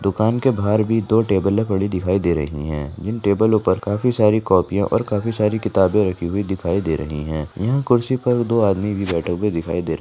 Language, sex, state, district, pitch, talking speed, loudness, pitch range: Hindi, female, Rajasthan, Nagaur, 100 Hz, 230 wpm, -19 LUFS, 90-110 Hz